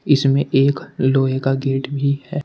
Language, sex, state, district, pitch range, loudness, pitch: Hindi, male, Uttar Pradesh, Shamli, 135-140 Hz, -18 LUFS, 135 Hz